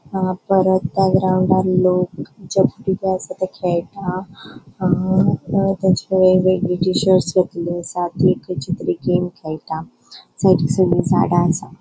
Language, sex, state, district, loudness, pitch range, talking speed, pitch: Konkani, female, Goa, North and South Goa, -18 LUFS, 175-190 Hz, 100 wpm, 185 Hz